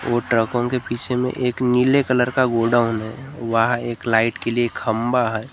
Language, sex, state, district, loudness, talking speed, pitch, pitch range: Hindi, male, Maharashtra, Gondia, -20 LUFS, 195 wpm, 120 Hz, 115-125 Hz